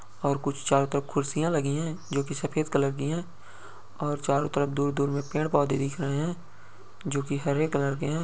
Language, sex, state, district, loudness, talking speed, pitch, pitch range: Hindi, male, Uttar Pradesh, Ghazipur, -28 LUFS, 195 wpm, 140 Hz, 140-150 Hz